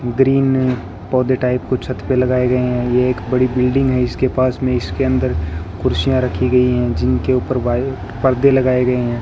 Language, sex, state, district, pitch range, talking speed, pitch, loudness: Hindi, male, Rajasthan, Bikaner, 120-130 Hz, 195 wpm, 125 Hz, -17 LUFS